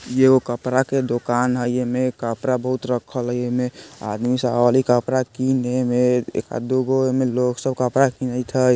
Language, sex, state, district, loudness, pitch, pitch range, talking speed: Bajjika, male, Bihar, Vaishali, -20 LUFS, 125 Hz, 125-130 Hz, 180 wpm